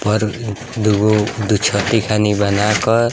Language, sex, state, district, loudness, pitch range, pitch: Bhojpuri, male, Bihar, East Champaran, -16 LUFS, 105-110 Hz, 105 Hz